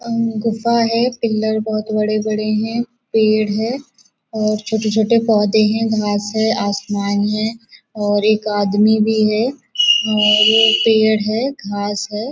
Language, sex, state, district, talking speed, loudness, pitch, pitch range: Hindi, female, Maharashtra, Nagpur, 140 wpm, -16 LUFS, 220 Hz, 215-230 Hz